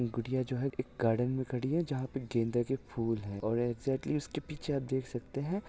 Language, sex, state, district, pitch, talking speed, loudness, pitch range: Hindi, male, Maharashtra, Solapur, 130 Hz, 230 wpm, -34 LUFS, 120-140 Hz